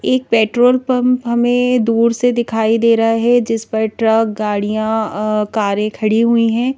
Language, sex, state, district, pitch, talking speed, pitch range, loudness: Hindi, female, Madhya Pradesh, Bhopal, 225 Hz, 160 wpm, 220-245 Hz, -15 LUFS